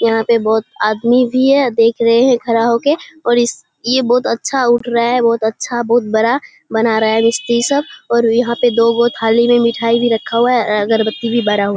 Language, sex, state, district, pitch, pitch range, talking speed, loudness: Hindi, female, Bihar, Kishanganj, 235 Hz, 225-245 Hz, 235 wpm, -14 LUFS